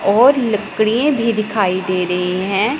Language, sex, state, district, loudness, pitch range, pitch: Hindi, female, Punjab, Pathankot, -16 LUFS, 185-230 Hz, 210 Hz